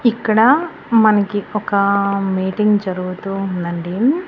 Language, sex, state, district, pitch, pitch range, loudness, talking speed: Telugu, female, Andhra Pradesh, Annamaya, 200 Hz, 190-225 Hz, -17 LUFS, 85 wpm